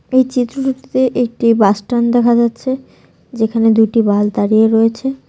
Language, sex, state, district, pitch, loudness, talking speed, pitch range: Bengali, female, West Bengal, Cooch Behar, 235 Hz, -14 LUFS, 135 wpm, 225-255 Hz